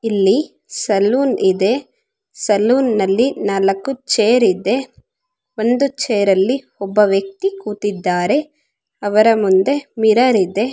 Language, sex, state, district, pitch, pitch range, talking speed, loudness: Kannada, female, Karnataka, Chamarajanagar, 220 Hz, 195-270 Hz, 90 wpm, -16 LUFS